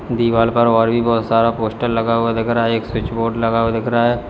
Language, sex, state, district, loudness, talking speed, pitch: Hindi, male, Uttar Pradesh, Lalitpur, -17 LUFS, 280 wpm, 115 Hz